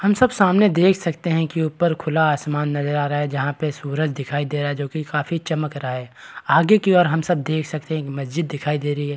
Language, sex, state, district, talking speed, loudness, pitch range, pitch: Hindi, male, Bihar, Kishanganj, 260 wpm, -20 LUFS, 145-165 Hz, 155 Hz